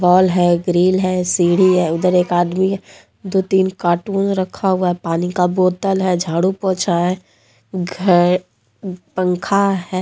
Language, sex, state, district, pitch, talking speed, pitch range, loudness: Hindi, female, Jharkhand, Deoghar, 185 Hz, 145 wpm, 175-190 Hz, -17 LUFS